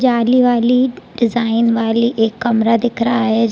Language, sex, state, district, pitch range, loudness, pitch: Hindi, female, Bihar, East Champaran, 230-240 Hz, -15 LUFS, 235 Hz